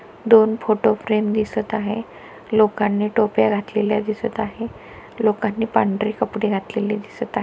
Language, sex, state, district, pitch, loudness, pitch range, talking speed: Marathi, female, Maharashtra, Pune, 215 Hz, -20 LUFS, 210-220 Hz, 130 wpm